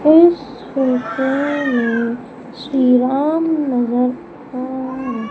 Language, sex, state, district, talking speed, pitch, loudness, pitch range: Hindi, female, Madhya Pradesh, Umaria, 90 wpm, 260 Hz, -17 LUFS, 250-275 Hz